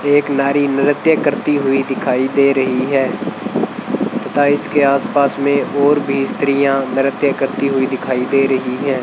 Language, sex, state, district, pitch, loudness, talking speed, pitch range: Hindi, male, Rajasthan, Bikaner, 140 Hz, -16 LUFS, 155 wpm, 135-140 Hz